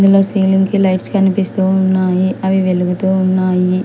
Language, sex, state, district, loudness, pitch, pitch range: Telugu, female, Telangana, Hyderabad, -14 LUFS, 190 Hz, 185-195 Hz